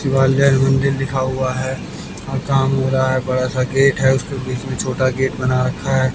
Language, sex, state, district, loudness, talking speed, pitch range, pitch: Hindi, male, Haryana, Jhajjar, -18 LUFS, 215 wpm, 130-135 Hz, 130 Hz